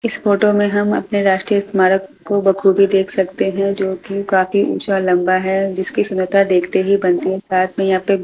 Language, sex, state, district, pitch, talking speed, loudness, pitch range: Hindi, female, Delhi, New Delhi, 195 Hz, 210 wpm, -16 LUFS, 190-200 Hz